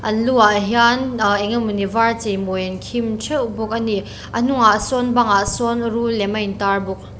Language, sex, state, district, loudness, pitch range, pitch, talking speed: Mizo, female, Mizoram, Aizawl, -18 LUFS, 205-235 Hz, 220 Hz, 190 wpm